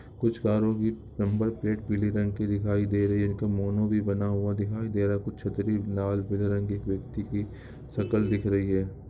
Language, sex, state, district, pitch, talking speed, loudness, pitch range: Hindi, male, Bihar, Darbhanga, 105 Hz, 190 wpm, -28 LUFS, 100-105 Hz